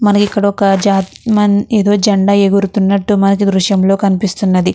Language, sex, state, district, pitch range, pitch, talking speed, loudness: Telugu, female, Andhra Pradesh, Krishna, 195-205 Hz, 200 Hz, 125 wpm, -12 LUFS